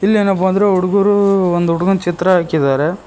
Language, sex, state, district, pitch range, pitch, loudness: Kannada, male, Karnataka, Koppal, 175-200 Hz, 185 Hz, -14 LUFS